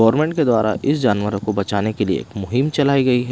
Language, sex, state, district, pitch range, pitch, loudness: Hindi, male, Himachal Pradesh, Shimla, 105-135 Hz, 115 Hz, -19 LUFS